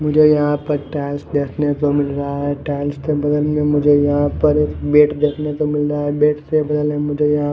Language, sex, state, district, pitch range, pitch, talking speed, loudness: Hindi, male, Punjab, Fazilka, 145-150 Hz, 150 Hz, 240 wpm, -17 LUFS